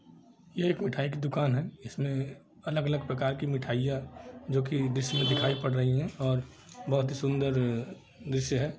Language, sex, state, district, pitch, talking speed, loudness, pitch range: Hindi, male, Jharkhand, Jamtara, 135 Hz, 185 wpm, -30 LUFS, 130-145 Hz